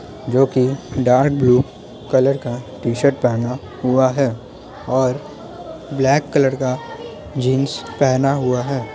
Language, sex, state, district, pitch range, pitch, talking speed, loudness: Hindi, male, Bihar, Muzaffarpur, 125-135 Hz, 130 Hz, 120 wpm, -18 LUFS